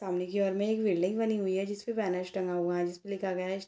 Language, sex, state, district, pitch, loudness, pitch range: Hindi, female, Bihar, Purnia, 190 Hz, -32 LUFS, 180-205 Hz